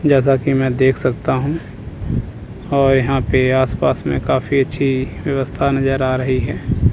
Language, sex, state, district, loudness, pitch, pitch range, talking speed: Hindi, male, Chandigarh, Chandigarh, -17 LUFS, 130 Hz, 130-135 Hz, 155 wpm